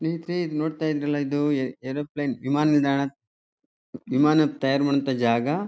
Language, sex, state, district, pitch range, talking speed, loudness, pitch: Kannada, male, Karnataka, Chamarajanagar, 135-150 Hz, 150 wpm, -24 LUFS, 145 Hz